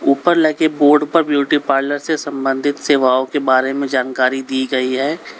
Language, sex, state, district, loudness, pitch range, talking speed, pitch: Hindi, male, Uttar Pradesh, Lalitpur, -16 LUFS, 130-150 Hz, 190 wpm, 140 Hz